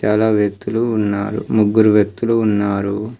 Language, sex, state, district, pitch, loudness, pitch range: Telugu, male, Telangana, Komaram Bheem, 105 Hz, -16 LUFS, 105-110 Hz